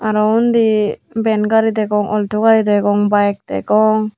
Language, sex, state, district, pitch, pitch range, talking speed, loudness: Chakma, female, Tripura, Unakoti, 215 Hz, 210-220 Hz, 160 wpm, -15 LUFS